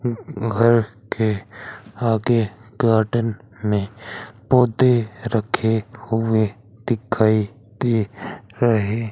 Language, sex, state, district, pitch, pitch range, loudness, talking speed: Hindi, male, Rajasthan, Bikaner, 110 Hz, 110-115 Hz, -21 LUFS, 85 wpm